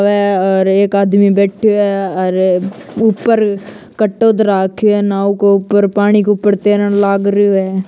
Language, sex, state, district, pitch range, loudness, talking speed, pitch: Hindi, male, Rajasthan, Churu, 195-205 Hz, -12 LUFS, 175 wpm, 200 Hz